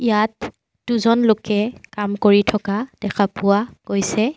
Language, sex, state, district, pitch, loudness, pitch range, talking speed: Assamese, female, Assam, Sonitpur, 215 Hz, -19 LUFS, 205-230 Hz, 125 wpm